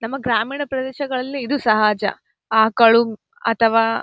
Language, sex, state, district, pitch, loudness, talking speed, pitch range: Kannada, female, Karnataka, Gulbarga, 230 Hz, -18 LUFS, 120 wpm, 225-265 Hz